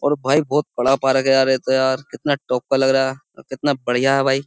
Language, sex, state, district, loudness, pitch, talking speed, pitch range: Hindi, male, Uttar Pradesh, Jyotiba Phule Nagar, -18 LUFS, 135 Hz, 255 wpm, 130-135 Hz